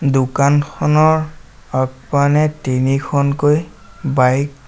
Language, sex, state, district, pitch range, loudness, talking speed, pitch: Assamese, male, Assam, Sonitpur, 130-150 Hz, -16 LUFS, 65 wpm, 140 Hz